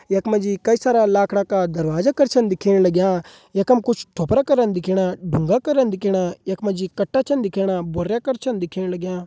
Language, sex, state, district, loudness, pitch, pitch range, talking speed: Hindi, male, Uttarakhand, Uttarkashi, -20 LUFS, 195 Hz, 185-230 Hz, 200 wpm